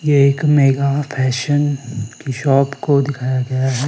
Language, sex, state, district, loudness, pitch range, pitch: Hindi, male, Himachal Pradesh, Shimla, -17 LUFS, 130-145 Hz, 140 Hz